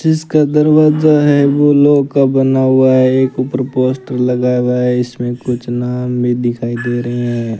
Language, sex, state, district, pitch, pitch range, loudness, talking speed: Hindi, male, Rajasthan, Bikaner, 130 Hz, 125-140 Hz, -13 LUFS, 180 wpm